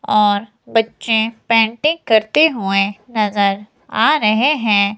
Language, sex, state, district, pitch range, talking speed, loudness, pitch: Hindi, female, Himachal Pradesh, Shimla, 205-235 Hz, 110 wpm, -16 LUFS, 220 Hz